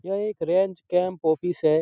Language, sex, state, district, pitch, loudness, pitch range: Hindi, male, Bihar, Araria, 180 Hz, -24 LUFS, 160-190 Hz